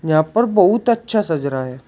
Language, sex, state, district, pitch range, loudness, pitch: Hindi, male, Uttar Pradesh, Shamli, 150-225 Hz, -17 LUFS, 180 Hz